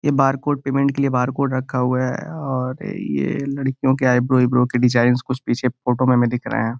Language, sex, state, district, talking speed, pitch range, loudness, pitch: Hindi, male, Uttar Pradesh, Gorakhpur, 220 wpm, 125-135 Hz, -20 LUFS, 130 Hz